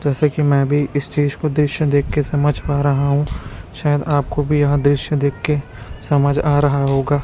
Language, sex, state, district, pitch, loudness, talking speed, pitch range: Hindi, male, Chhattisgarh, Raipur, 145 Hz, -17 LUFS, 190 wpm, 140-150 Hz